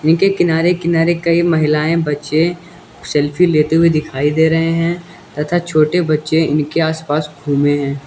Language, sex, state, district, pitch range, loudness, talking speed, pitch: Hindi, male, Uttar Pradesh, Lucknow, 150-170 Hz, -15 LUFS, 150 wpm, 160 Hz